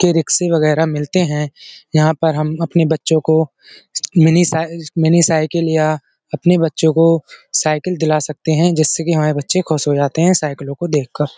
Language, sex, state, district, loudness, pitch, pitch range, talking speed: Hindi, male, Uttar Pradesh, Budaun, -15 LUFS, 160 Hz, 150-165 Hz, 180 wpm